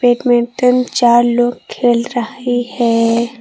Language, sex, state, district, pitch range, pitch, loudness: Hindi, female, Tripura, Dhalai, 235-245 Hz, 240 Hz, -14 LUFS